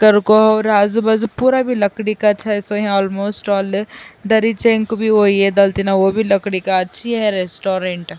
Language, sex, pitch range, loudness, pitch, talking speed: Urdu, female, 195-220 Hz, -15 LUFS, 205 Hz, 140 wpm